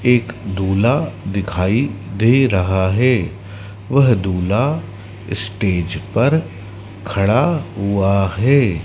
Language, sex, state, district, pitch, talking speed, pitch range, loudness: Hindi, male, Madhya Pradesh, Dhar, 100 Hz, 90 wpm, 95-120 Hz, -17 LUFS